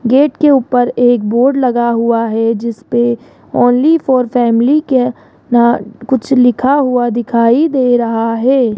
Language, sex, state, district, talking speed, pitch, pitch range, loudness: Hindi, female, Rajasthan, Jaipur, 145 wpm, 245 Hz, 235-260 Hz, -12 LUFS